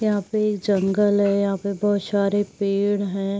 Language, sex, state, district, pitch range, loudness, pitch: Hindi, female, Bihar, Saharsa, 200-205 Hz, -22 LUFS, 200 Hz